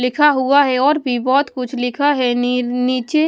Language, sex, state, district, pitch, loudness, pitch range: Hindi, female, Punjab, Kapurthala, 255 Hz, -16 LUFS, 250-285 Hz